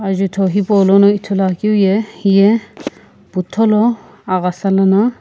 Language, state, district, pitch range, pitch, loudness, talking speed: Sumi, Nagaland, Kohima, 190-210 Hz, 200 Hz, -14 LUFS, 90 wpm